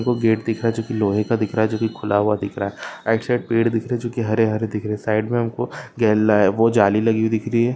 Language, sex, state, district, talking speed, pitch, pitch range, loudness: Hindi, male, Maharashtra, Solapur, 325 wpm, 110 Hz, 105-115 Hz, -20 LUFS